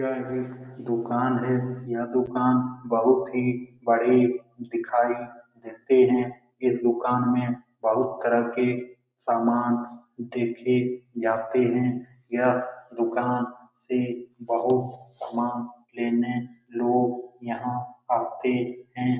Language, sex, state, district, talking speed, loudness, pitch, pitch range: Hindi, male, Bihar, Lakhisarai, 100 wpm, -25 LUFS, 125 Hz, 120-125 Hz